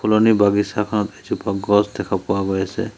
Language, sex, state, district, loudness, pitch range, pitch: Assamese, male, Assam, Sonitpur, -19 LUFS, 100-105 Hz, 105 Hz